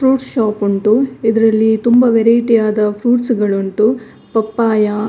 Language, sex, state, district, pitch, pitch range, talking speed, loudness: Kannada, female, Karnataka, Dakshina Kannada, 225 Hz, 215-240 Hz, 140 wpm, -14 LUFS